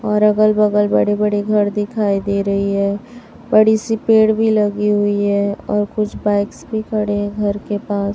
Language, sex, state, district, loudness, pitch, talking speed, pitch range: Hindi, male, Chhattisgarh, Raipur, -16 LUFS, 210 Hz, 185 wpm, 205-215 Hz